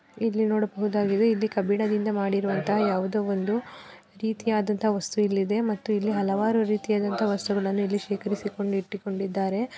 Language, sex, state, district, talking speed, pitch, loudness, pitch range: Kannada, female, Karnataka, Belgaum, 125 wpm, 205 Hz, -26 LUFS, 200-215 Hz